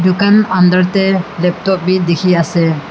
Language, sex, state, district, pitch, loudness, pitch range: Nagamese, female, Nagaland, Kohima, 185 Hz, -12 LUFS, 175-190 Hz